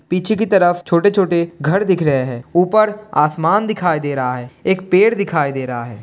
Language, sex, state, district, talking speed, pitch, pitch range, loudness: Hindi, male, Bihar, Kishanganj, 200 wpm, 175 Hz, 145-195 Hz, -16 LUFS